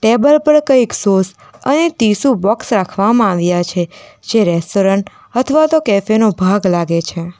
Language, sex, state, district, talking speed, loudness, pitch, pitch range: Gujarati, female, Gujarat, Valsad, 155 wpm, -13 LUFS, 215 Hz, 190-260 Hz